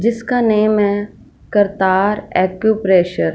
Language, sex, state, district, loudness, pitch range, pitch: Hindi, female, Punjab, Fazilka, -15 LUFS, 190-215 Hz, 205 Hz